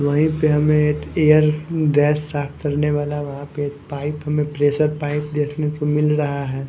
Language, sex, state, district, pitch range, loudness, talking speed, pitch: Hindi, male, Punjab, Kapurthala, 145-150 Hz, -20 LUFS, 180 wpm, 150 Hz